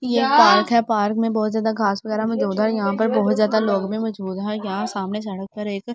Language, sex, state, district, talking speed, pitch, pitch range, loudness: Hindi, female, Delhi, New Delhi, 240 wpm, 215 Hz, 200-225 Hz, -20 LUFS